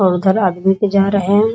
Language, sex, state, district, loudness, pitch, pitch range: Hindi, female, Bihar, Muzaffarpur, -15 LUFS, 195 Hz, 190-200 Hz